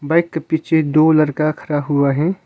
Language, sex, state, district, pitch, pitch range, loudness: Hindi, male, Arunachal Pradesh, Longding, 155 Hz, 145-160 Hz, -16 LUFS